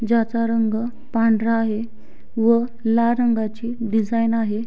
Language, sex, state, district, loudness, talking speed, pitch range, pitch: Marathi, female, Maharashtra, Sindhudurg, -20 LUFS, 115 wpm, 225-235 Hz, 230 Hz